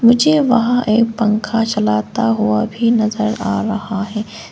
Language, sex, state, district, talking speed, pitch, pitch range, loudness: Hindi, female, Arunachal Pradesh, Longding, 145 wpm, 220 Hz, 210-230 Hz, -16 LUFS